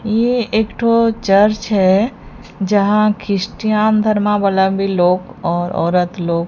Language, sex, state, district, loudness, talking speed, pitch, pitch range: Hindi, female, Odisha, Sambalpur, -15 LUFS, 130 wpm, 205 Hz, 190-215 Hz